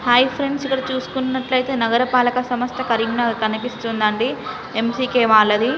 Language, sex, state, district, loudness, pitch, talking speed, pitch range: Telugu, female, Telangana, Karimnagar, -19 LUFS, 245 Hz, 135 wpm, 230-255 Hz